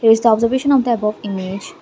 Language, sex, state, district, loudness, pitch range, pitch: English, female, Assam, Kamrup Metropolitan, -17 LUFS, 210-240 Hz, 225 Hz